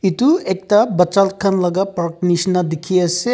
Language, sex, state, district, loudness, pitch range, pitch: Nagamese, male, Nagaland, Kohima, -16 LUFS, 180-195 Hz, 190 Hz